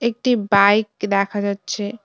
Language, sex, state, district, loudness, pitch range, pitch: Bengali, female, West Bengal, Cooch Behar, -18 LUFS, 200-220 Hz, 205 Hz